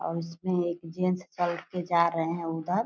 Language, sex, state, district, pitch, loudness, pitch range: Hindi, female, Bihar, Purnia, 170 Hz, -29 LUFS, 165-180 Hz